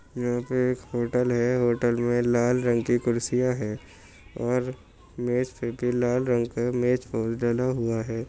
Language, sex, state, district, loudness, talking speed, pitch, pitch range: Hindi, male, Uttar Pradesh, Jyotiba Phule Nagar, -26 LUFS, 180 wpm, 120 Hz, 115-125 Hz